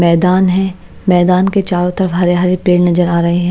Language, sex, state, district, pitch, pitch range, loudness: Hindi, female, Himachal Pradesh, Shimla, 180 Hz, 175-185 Hz, -12 LUFS